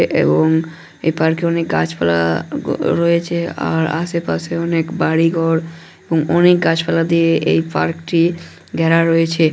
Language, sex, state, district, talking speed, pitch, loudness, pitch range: Bengali, male, West Bengal, North 24 Parganas, 125 wpm, 165 Hz, -16 LUFS, 160-170 Hz